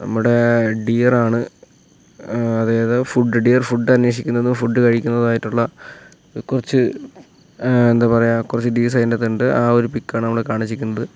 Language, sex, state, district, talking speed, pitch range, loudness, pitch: Malayalam, male, Kerala, Kollam, 120 wpm, 115-120 Hz, -17 LUFS, 120 Hz